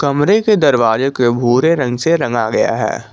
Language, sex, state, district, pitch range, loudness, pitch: Hindi, male, Jharkhand, Garhwa, 120-165 Hz, -14 LUFS, 135 Hz